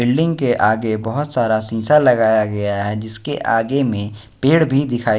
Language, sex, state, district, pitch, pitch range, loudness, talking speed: Hindi, male, Bihar, West Champaran, 115 Hz, 110-140 Hz, -17 LUFS, 175 wpm